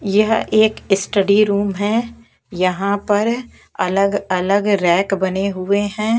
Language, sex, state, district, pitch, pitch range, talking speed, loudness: Hindi, female, Haryana, Jhajjar, 200 Hz, 195-215 Hz, 115 wpm, -17 LUFS